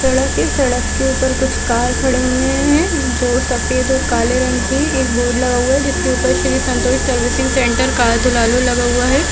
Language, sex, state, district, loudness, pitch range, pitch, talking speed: Hindi, female, Chhattisgarh, Bastar, -15 LUFS, 230-265 Hz, 245 Hz, 215 wpm